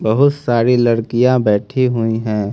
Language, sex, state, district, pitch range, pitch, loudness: Hindi, male, Haryana, Rohtak, 110-125 Hz, 120 Hz, -15 LUFS